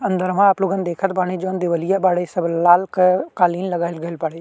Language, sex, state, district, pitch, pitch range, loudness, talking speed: Bhojpuri, male, Uttar Pradesh, Deoria, 185 Hz, 175-190 Hz, -18 LUFS, 205 wpm